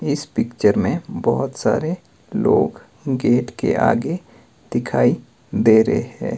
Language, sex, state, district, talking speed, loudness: Hindi, male, Himachal Pradesh, Shimla, 120 wpm, -19 LUFS